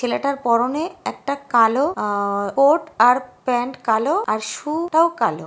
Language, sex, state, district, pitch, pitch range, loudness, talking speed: Bengali, female, West Bengal, Jhargram, 255 Hz, 225-295 Hz, -19 LUFS, 140 wpm